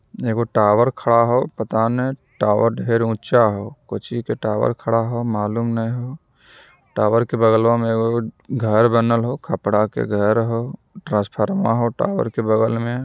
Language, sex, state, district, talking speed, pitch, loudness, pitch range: Magahi, male, Bihar, Jamui, 175 wpm, 115 Hz, -19 LUFS, 110-120 Hz